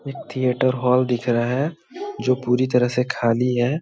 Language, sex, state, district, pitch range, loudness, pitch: Hindi, male, Chhattisgarh, Balrampur, 125-135 Hz, -21 LUFS, 125 Hz